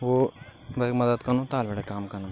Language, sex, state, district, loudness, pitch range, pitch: Garhwali, male, Uttarakhand, Tehri Garhwal, -27 LUFS, 100-125 Hz, 120 Hz